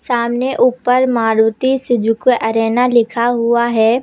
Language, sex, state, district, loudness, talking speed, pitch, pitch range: Hindi, female, Uttar Pradesh, Lucknow, -14 LUFS, 120 wpm, 240 Hz, 225-250 Hz